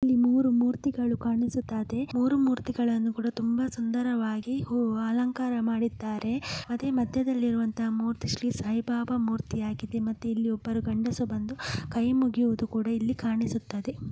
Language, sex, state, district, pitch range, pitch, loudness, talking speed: Kannada, male, Karnataka, Mysore, 225-245 Hz, 235 Hz, -28 LUFS, 120 wpm